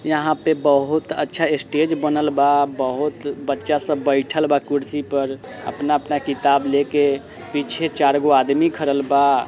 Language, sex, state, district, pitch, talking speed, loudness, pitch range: Bajjika, male, Bihar, Vaishali, 145 Hz, 140 wpm, -18 LUFS, 140-150 Hz